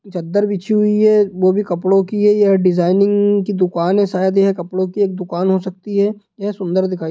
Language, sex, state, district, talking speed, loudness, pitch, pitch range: Hindi, male, Bihar, Sitamarhi, 230 wpm, -16 LUFS, 195 Hz, 185-205 Hz